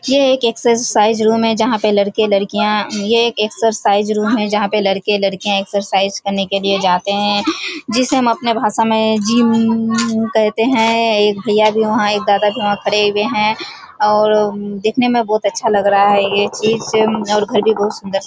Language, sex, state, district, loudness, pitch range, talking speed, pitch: Hindi, female, Bihar, Kishanganj, -15 LUFS, 205-225 Hz, 165 wpm, 215 Hz